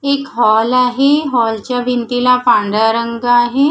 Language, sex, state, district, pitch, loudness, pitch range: Marathi, female, Maharashtra, Gondia, 245 Hz, -13 LUFS, 230-255 Hz